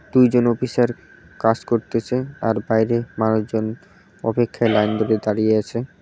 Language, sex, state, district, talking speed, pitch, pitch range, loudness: Bengali, male, West Bengal, Cooch Behar, 120 wpm, 115 Hz, 110-120 Hz, -20 LUFS